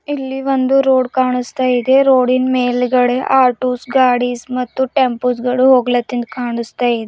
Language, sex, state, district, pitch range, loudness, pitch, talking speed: Kannada, female, Karnataka, Bidar, 245-260 Hz, -15 LUFS, 255 Hz, 135 wpm